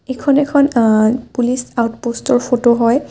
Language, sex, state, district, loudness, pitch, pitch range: Assamese, female, Assam, Kamrup Metropolitan, -15 LUFS, 245 Hz, 235-260 Hz